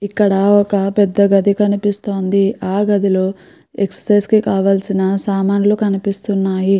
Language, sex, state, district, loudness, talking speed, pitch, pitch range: Telugu, female, Andhra Pradesh, Chittoor, -15 LUFS, 115 wpm, 200 Hz, 195-205 Hz